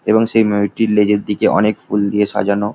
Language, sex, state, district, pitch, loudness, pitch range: Bengali, male, West Bengal, Jhargram, 105 Hz, -15 LUFS, 105-110 Hz